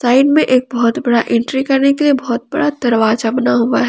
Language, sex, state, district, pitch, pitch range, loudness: Hindi, female, Jharkhand, Palamu, 255 Hz, 235-275 Hz, -14 LUFS